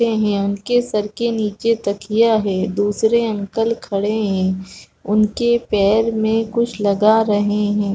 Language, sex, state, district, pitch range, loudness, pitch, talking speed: Hindi, female, Chhattisgarh, Rajnandgaon, 205-225 Hz, -18 LUFS, 215 Hz, 135 wpm